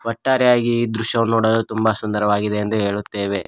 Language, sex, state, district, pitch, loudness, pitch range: Kannada, male, Karnataka, Koppal, 110 Hz, -18 LUFS, 105-115 Hz